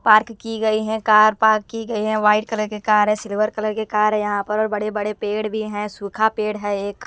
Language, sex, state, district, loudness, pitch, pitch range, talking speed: Hindi, female, Himachal Pradesh, Shimla, -20 LUFS, 215 Hz, 210-220 Hz, 255 wpm